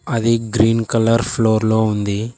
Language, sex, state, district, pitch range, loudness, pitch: Telugu, male, Telangana, Hyderabad, 110-115 Hz, -17 LUFS, 115 Hz